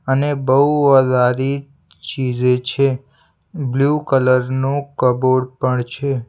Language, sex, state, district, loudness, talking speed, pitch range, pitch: Gujarati, male, Gujarat, Valsad, -17 LUFS, 105 wpm, 130-140 Hz, 135 Hz